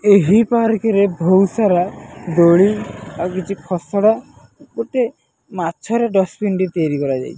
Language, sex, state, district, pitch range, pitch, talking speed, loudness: Odia, male, Odisha, Nuapada, 175-220 Hz, 195 Hz, 140 wpm, -17 LUFS